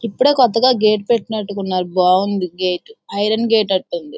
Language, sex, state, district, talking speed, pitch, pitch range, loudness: Telugu, female, Andhra Pradesh, Guntur, 130 wpm, 210 Hz, 185-230 Hz, -16 LUFS